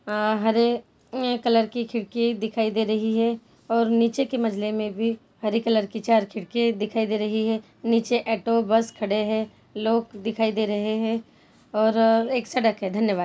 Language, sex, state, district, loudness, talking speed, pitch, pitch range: Hindi, female, Bihar, Jahanabad, -24 LUFS, 205 wpm, 225 Hz, 215-230 Hz